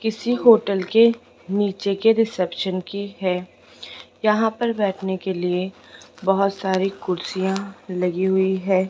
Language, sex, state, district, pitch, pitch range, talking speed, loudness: Hindi, female, Rajasthan, Jaipur, 195 Hz, 185-215 Hz, 130 wpm, -21 LUFS